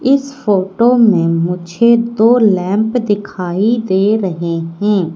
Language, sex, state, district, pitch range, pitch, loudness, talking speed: Hindi, female, Madhya Pradesh, Katni, 180-235 Hz, 205 Hz, -13 LUFS, 115 wpm